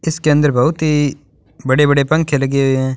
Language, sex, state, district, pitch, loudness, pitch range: Hindi, male, Rajasthan, Bikaner, 145 Hz, -15 LUFS, 135-155 Hz